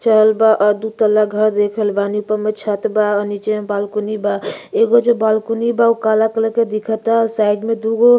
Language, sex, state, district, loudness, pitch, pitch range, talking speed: Bhojpuri, female, Uttar Pradesh, Ghazipur, -16 LUFS, 215 Hz, 210-225 Hz, 205 wpm